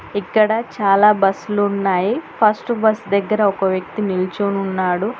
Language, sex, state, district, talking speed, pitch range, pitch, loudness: Telugu, female, Telangana, Hyderabad, 125 wpm, 195-215 Hz, 200 Hz, -18 LUFS